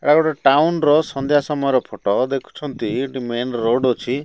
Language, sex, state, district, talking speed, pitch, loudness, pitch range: Odia, male, Odisha, Malkangiri, 170 wpm, 135 Hz, -19 LUFS, 125-150 Hz